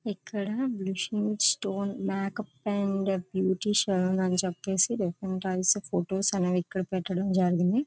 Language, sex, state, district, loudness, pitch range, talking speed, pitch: Telugu, female, Andhra Pradesh, Visakhapatnam, -28 LUFS, 185-205 Hz, 135 wpm, 190 Hz